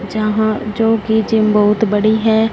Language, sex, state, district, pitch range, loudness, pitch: Hindi, female, Punjab, Fazilka, 210-220 Hz, -14 LUFS, 220 Hz